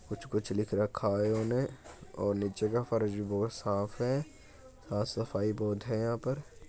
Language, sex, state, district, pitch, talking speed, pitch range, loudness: Hindi, male, Uttar Pradesh, Muzaffarnagar, 105 Hz, 180 wpm, 100-120 Hz, -33 LUFS